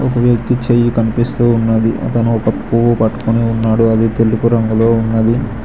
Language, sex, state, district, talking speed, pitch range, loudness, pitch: Telugu, male, Telangana, Mahabubabad, 150 wpm, 110-120 Hz, -13 LUFS, 115 Hz